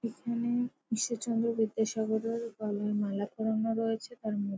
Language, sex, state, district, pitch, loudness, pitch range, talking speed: Bengali, female, West Bengal, Jalpaiguri, 225 Hz, -33 LUFS, 215-230 Hz, 120 wpm